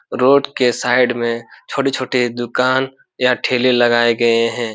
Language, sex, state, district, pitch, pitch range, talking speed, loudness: Hindi, male, Bihar, Supaul, 125 Hz, 120-130 Hz, 140 wpm, -16 LUFS